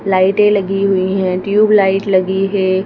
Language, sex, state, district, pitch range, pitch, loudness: Hindi, female, Madhya Pradesh, Bhopal, 190-200 Hz, 195 Hz, -13 LUFS